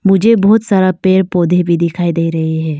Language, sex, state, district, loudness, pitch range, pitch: Hindi, female, Arunachal Pradesh, Longding, -12 LUFS, 170-195 Hz, 180 Hz